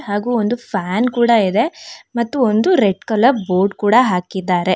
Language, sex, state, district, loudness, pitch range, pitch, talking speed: Kannada, female, Karnataka, Bangalore, -16 LUFS, 195-240 Hz, 220 Hz, 150 wpm